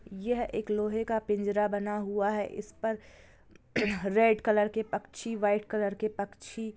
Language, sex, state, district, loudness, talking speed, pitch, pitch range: Hindi, female, Bihar, Gopalganj, -31 LUFS, 160 wpm, 210 Hz, 205-220 Hz